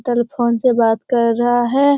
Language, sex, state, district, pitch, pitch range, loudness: Hindi, female, Bihar, Jamui, 240 Hz, 235-250 Hz, -16 LUFS